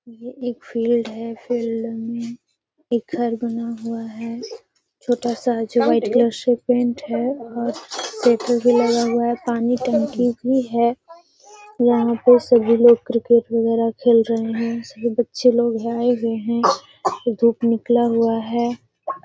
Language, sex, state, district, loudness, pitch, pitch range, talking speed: Hindi, female, Bihar, Gaya, -19 LUFS, 235 Hz, 230-245 Hz, 150 wpm